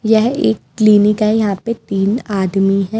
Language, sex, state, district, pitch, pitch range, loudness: Hindi, female, Himachal Pradesh, Shimla, 210 Hz, 195-220 Hz, -15 LUFS